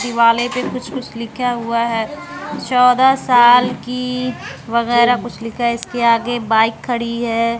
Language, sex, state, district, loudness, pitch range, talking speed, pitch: Hindi, female, Bihar, West Champaran, -16 LUFS, 230-250 Hz, 150 wpm, 240 Hz